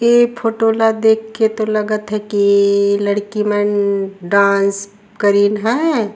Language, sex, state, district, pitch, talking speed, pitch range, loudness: Surgujia, female, Chhattisgarh, Sarguja, 210 Hz, 145 wpm, 200-220 Hz, -15 LUFS